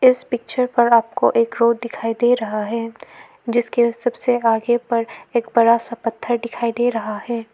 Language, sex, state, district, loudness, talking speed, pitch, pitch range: Hindi, female, Arunachal Pradesh, Lower Dibang Valley, -19 LUFS, 175 wpm, 235 Hz, 230-240 Hz